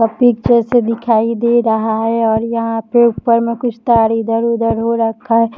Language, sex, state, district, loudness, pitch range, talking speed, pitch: Hindi, female, Maharashtra, Nagpur, -14 LUFS, 225-235 Hz, 185 wpm, 230 Hz